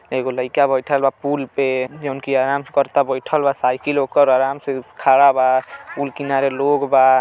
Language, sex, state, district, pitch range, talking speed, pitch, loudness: Bhojpuri, male, Uttar Pradesh, Deoria, 130-140 Hz, 190 wpm, 135 Hz, -18 LUFS